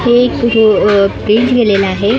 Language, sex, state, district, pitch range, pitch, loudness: Marathi, female, Maharashtra, Mumbai Suburban, 200-240 Hz, 220 Hz, -11 LUFS